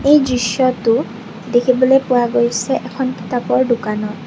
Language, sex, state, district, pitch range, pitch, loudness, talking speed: Assamese, female, Assam, Kamrup Metropolitan, 230-255 Hz, 240 Hz, -16 LUFS, 110 wpm